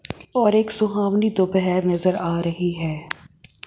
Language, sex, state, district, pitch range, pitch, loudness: Hindi, female, Chandigarh, Chandigarh, 170-205 Hz, 180 Hz, -21 LUFS